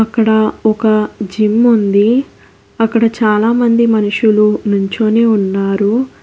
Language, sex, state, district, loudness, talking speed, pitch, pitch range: Telugu, female, Telangana, Hyderabad, -12 LUFS, 85 wpm, 220 Hz, 210-230 Hz